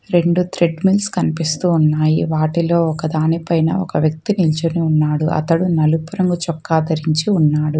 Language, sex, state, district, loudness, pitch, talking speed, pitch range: Telugu, female, Telangana, Hyderabad, -17 LUFS, 160 Hz, 130 wpm, 155-170 Hz